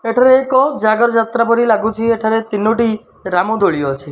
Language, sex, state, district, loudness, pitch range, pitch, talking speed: Odia, male, Odisha, Malkangiri, -14 LUFS, 215-235 Hz, 225 Hz, 160 wpm